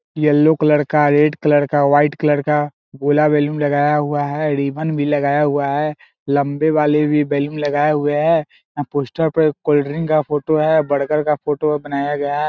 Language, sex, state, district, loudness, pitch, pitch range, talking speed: Hindi, male, Bihar, Muzaffarpur, -17 LUFS, 150 Hz, 145-150 Hz, 190 wpm